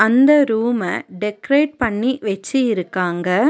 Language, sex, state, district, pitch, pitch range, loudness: Tamil, female, Tamil Nadu, Nilgiris, 220 Hz, 195-260 Hz, -18 LUFS